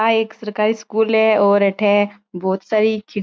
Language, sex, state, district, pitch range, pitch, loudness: Marwari, female, Rajasthan, Churu, 205-220 Hz, 210 Hz, -17 LUFS